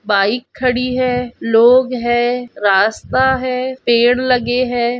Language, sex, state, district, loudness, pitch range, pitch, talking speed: Hindi, female, Goa, North and South Goa, -15 LUFS, 235-255 Hz, 245 Hz, 120 wpm